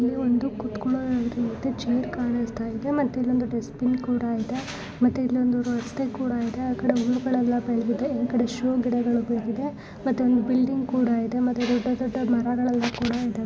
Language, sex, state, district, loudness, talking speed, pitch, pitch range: Kannada, female, Karnataka, Bellary, -25 LUFS, 160 wpm, 245 Hz, 235-255 Hz